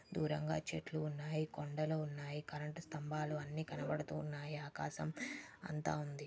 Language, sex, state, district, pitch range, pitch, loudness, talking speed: Telugu, female, Andhra Pradesh, Srikakulam, 145-155 Hz, 150 Hz, -43 LUFS, 115 wpm